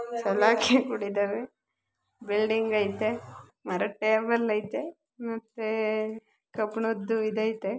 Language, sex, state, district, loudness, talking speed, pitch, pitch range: Kannada, female, Karnataka, Belgaum, -28 LUFS, 85 wpm, 220 Hz, 215-230 Hz